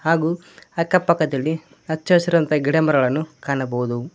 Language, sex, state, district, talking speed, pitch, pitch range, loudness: Kannada, male, Karnataka, Koppal, 115 wpm, 155 Hz, 140-170 Hz, -20 LUFS